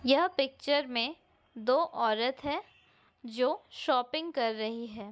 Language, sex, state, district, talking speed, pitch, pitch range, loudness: Hindi, female, Maharashtra, Pune, 130 wpm, 255 Hz, 235-290 Hz, -31 LUFS